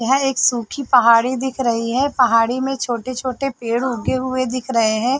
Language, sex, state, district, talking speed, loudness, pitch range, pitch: Hindi, female, Chhattisgarh, Sarguja, 195 wpm, -18 LUFS, 235-265 Hz, 250 Hz